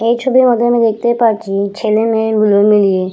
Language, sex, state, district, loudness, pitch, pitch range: Bengali, female, West Bengal, Purulia, -12 LUFS, 220 Hz, 205-235 Hz